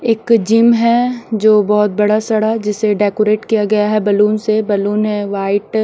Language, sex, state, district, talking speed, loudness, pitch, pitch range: Hindi, female, Odisha, Nuapada, 185 wpm, -14 LUFS, 215 Hz, 210-220 Hz